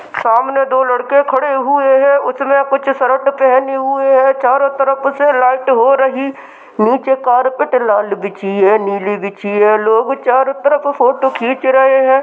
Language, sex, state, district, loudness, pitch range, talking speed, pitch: Hindi, male, Bihar, Begusarai, -13 LUFS, 245-270 Hz, 160 wpm, 265 Hz